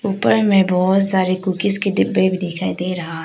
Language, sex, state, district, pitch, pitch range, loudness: Hindi, female, Arunachal Pradesh, Papum Pare, 185 Hz, 185-195 Hz, -16 LUFS